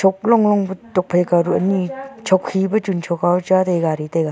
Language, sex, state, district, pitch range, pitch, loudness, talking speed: Wancho, female, Arunachal Pradesh, Longding, 175-195 Hz, 185 Hz, -18 LUFS, 250 wpm